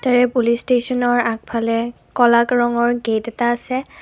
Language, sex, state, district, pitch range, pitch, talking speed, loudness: Assamese, female, Assam, Kamrup Metropolitan, 235-245 Hz, 240 Hz, 135 wpm, -18 LUFS